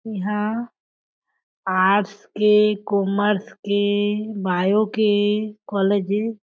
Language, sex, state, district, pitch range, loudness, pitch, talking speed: Chhattisgarhi, female, Chhattisgarh, Jashpur, 200-210 Hz, -21 LUFS, 210 Hz, 85 wpm